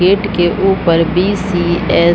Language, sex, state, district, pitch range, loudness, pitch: Hindi, female, Bihar, Supaul, 175-195 Hz, -13 LUFS, 180 Hz